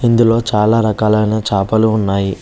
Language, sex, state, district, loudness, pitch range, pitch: Telugu, male, Telangana, Hyderabad, -14 LUFS, 105-115 Hz, 110 Hz